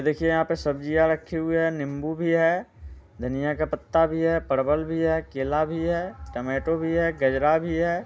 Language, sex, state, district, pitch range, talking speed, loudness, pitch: Hindi, male, Bihar, Muzaffarpur, 145-165 Hz, 200 wpm, -25 LUFS, 160 Hz